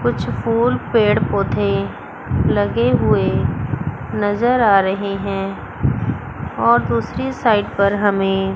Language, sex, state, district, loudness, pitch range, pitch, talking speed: Hindi, female, Chandigarh, Chandigarh, -18 LUFS, 125-205 Hz, 195 Hz, 105 wpm